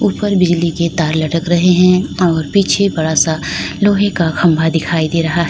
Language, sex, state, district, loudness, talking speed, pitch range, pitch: Hindi, female, Uttar Pradesh, Lalitpur, -14 LUFS, 195 wpm, 160-180 Hz, 170 Hz